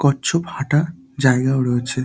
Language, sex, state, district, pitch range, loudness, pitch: Bengali, male, West Bengal, Dakshin Dinajpur, 130-150 Hz, -19 LUFS, 135 Hz